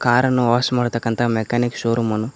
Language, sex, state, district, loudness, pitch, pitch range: Kannada, male, Karnataka, Koppal, -19 LUFS, 120 Hz, 115-120 Hz